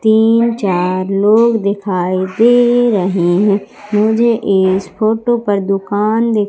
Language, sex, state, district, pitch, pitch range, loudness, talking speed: Hindi, male, Madhya Pradesh, Umaria, 210 Hz, 195-230 Hz, -13 LUFS, 120 wpm